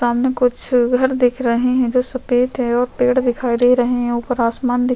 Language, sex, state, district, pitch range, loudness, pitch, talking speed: Hindi, female, Chhattisgarh, Sukma, 245-250 Hz, -17 LUFS, 245 Hz, 215 wpm